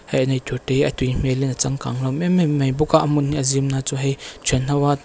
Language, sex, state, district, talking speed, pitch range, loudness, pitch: Mizo, female, Mizoram, Aizawl, 310 wpm, 130-145 Hz, -20 LUFS, 135 Hz